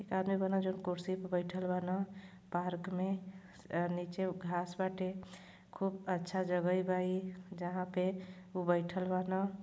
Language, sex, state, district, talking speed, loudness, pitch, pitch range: Bhojpuri, female, Uttar Pradesh, Gorakhpur, 160 wpm, -37 LUFS, 185 Hz, 180-190 Hz